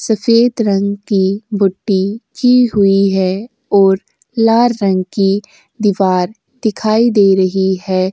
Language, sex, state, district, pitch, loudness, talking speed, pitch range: Hindi, female, Uttar Pradesh, Jyotiba Phule Nagar, 200 Hz, -14 LUFS, 120 wpm, 190-225 Hz